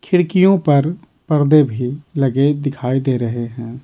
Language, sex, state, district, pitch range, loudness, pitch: Hindi, male, Bihar, Patna, 125-155 Hz, -16 LUFS, 140 Hz